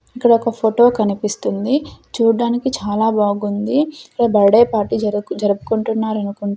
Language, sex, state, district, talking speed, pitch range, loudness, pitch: Telugu, female, Andhra Pradesh, Sri Satya Sai, 100 wpm, 205-235 Hz, -17 LUFS, 220 Hz